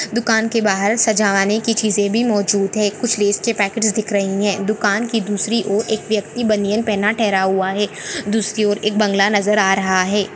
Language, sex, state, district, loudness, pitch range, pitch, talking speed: Hindi, female, Maharashtra, Nagpur, -17 LUFS, 200-220 Hz, 210 Hz, 195 wpm